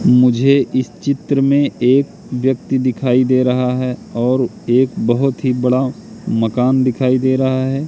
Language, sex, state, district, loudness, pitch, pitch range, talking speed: Hindi, male, Madhya Pradesh, Katni, -16 LUFS, 130 Hz, 125-135 Hz, 150 wpm